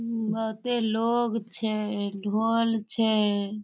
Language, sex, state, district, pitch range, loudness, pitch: Maithili, female, Bihar, Darbhanga, 210-230 Hz, -27 LUFS, 220 Hz